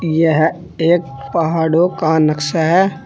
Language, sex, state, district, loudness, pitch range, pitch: Hindi, male, Uttar Pradesh, Saharanpur, -15 LUFS, 160-170 Hz, 165 Hz